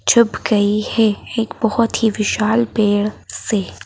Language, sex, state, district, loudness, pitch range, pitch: Hindi, female, Madhya Pradesh, Bhopal, -17 LUFS, 210-225 Hz, 215 Hz